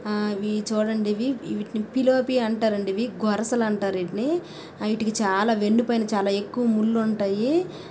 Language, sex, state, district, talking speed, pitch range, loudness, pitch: Telugu, female, Telangana, Karimnagar, 135 wpm, 210-235 Hz, -24 LUFS, 220 Hz